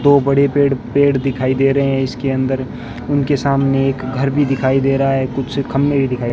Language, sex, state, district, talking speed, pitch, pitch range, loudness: Hindi, male, Rajasthan, Bikaner, 220 wpm, 135 Hz, 130-140 Hz, -16 LUFS